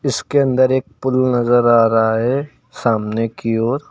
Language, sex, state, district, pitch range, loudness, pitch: Hindi, male, Uttar Pradesh, Lucknow, 115-130 Hz, -16 LUFS, 120 Hz